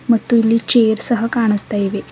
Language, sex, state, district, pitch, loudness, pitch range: Kannada, female, Karnataka, Bidar, 230 Hz, -15 LUFS, 215-235 Hz